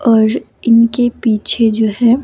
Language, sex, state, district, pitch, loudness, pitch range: Hindi, female, Himachal Pradesh, Shimla, 230 Hz, -13 LUFS, 220-240 Hz